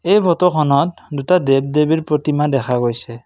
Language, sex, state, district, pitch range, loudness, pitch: Assamese, male, Assam, Kamrup Metropolitan, 135-170 Hz, -16 LUFS, 150 Hz